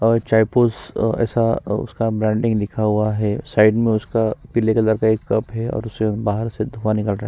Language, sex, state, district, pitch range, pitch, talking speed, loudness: Hindi, female, Chhattisgarh, Sukma, 110-115 Hz, 110 Hz, 215 wpm, -19 LUFS